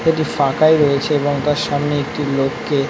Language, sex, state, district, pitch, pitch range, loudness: Bengali, male, West Bengal, North 24 Parganas, 145 Hz, 140-150 Hz, -17 LUFS